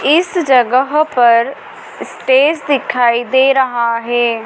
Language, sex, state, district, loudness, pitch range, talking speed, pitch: Hindi, female, Madhya Pradesh, Dhar, -13 LUFS, 240-280 Hz, 110 wpm, 255 Hz